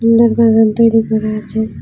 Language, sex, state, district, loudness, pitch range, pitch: Bengali, female, Tripura, West Tripura, -12 LUFS, 220-230 Hz, 225 Hz